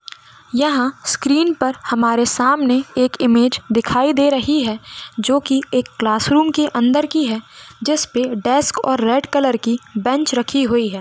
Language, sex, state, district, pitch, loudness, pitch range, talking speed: Hindi, female, Goa, North and South Goa, 255 Hz, -17 LUFS, 235-280 Hz, 165 wpm